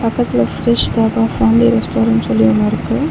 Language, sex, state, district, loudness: Tamil, female, Tamil Nadu, Chennai, -14 LUFS